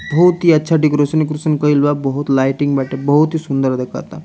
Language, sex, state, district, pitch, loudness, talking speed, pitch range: Bhojpuri, male, Bihar, Muzaffarpur, 145 Hz, -15 LUFS, 195 wpm, 135-155 Hz